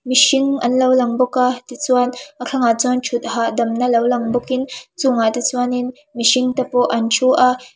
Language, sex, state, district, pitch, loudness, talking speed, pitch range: Mizo, female, Mizoram, Aizawl, 250 Hz, -17 LUFS, 185 wpm, 240-255 Hz